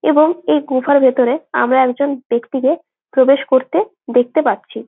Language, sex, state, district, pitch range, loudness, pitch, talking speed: Bengali, female, West Bengal, Malda, 260-300 Hz, -15 LUFS, 270 Hz, 135 wpm